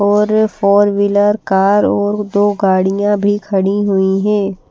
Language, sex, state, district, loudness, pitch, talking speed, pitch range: Hindi, female, Himachal Pradesh, Shimla, -13 LUFS, 205 Hz, 140 wpm, 195-205 Hz